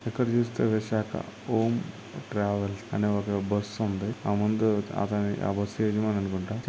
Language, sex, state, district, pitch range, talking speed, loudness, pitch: Telugu, male, Andhra Pradesh, Chittoor, 100-110 Hz, 100 wpm, -28 LUFS, 105 Hz